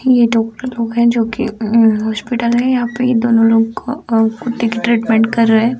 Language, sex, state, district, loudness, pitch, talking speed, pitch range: Hindi, female, Bihar, Sitamarhi, -14 LUFS, 230 Hz, 205 wpm, 225-240 Hz